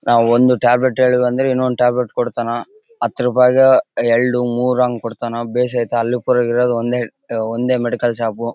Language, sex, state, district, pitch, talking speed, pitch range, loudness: Kannada, male, Karnataka, Bellary, 125 Hz, 135 wpm, 120-125 Hz, -16 LUFS